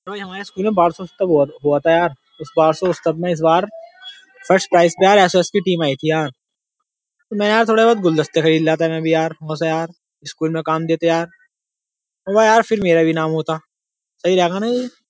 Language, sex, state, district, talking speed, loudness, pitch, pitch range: Hindi, male, Uttar Pradesh, Jyotiba Phule Nagar, 230 wpm, -17 LUFS, 170 Hz, 160-205 Hz